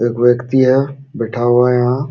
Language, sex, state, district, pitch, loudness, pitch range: Hindi, male, Uttar Pradesh, Jalaun, 125 Hz, -14 LUFS, 120-135 Hz